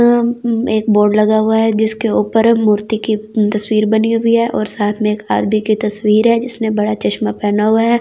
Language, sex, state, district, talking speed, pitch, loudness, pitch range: Hindi, female, Delhi, New Delhi, 200 wpm, 215 Hz, -14 LUFS, 210-225 Hz